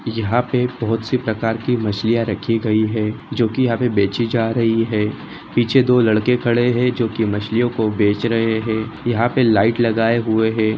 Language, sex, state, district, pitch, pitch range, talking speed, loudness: Hindi, male, Jharkhand, Sahebganj, 115 Hz, 110-120 Hz, 200 wpm, -18 LUFS